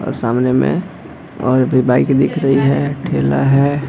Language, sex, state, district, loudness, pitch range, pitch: Hindi, male, Jharkhand, Jamtara, -15 LUFS, 125-140 Hz, 135 Hz